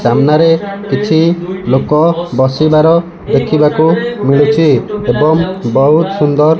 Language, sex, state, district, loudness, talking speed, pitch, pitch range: Odia, male, Odisha, Malkangiri, -11 LUFS, 90 wpm, 155 Hz, 145-170 Hz